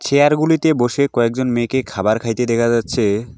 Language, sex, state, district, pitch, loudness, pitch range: Bengali, male, West Bengal, Alipurduar, 120 Hz, -17 LUFS, 115-140 Hz